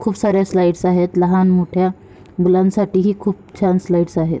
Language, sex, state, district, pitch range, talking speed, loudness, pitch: Marathi, female, Maharashtra, Sindhudurg, 180-195 Hz, 175 wpm, -16 LUFS, 185 Hz